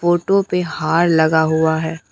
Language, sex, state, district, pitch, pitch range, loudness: Hindi, male, Bihar, Katihar, 160 Hz, 160-175 Hz, -16 LUFS